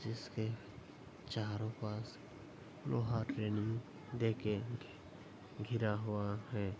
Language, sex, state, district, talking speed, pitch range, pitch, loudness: Hindi, male, Bihar, Madhepura, 90 wpm, 105-115 Hz, 110 Hz, -41 LUFS